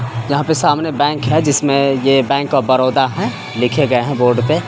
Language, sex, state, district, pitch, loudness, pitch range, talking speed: Hindi, male, Bihar, Samastipur, 140 Hz, -15 LUFS, 130-145 Hz, 220 wpm